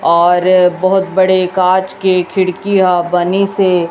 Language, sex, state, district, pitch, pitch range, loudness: Hindi, female, Chhattisgarh, Raipur, 185 Hz, 180-190 Hz, -12 LUFS